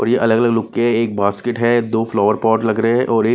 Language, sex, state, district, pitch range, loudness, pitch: Hindi, male, Bihar, Patna, 110-120 Hz, -16 LUFS, 115 Hz